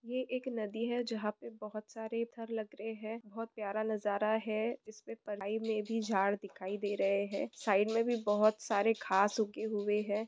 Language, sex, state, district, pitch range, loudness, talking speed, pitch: Hindi, female, West Bengal, Purulia, 205-225 Hz, -35 LUFS, 185 wpm, 215 Hz